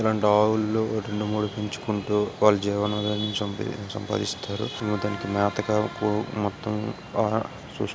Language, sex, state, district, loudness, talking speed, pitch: Telugu, male, Andhra Pradesh, Krishna, -26 LUFS, 105 wpm, 105 Hz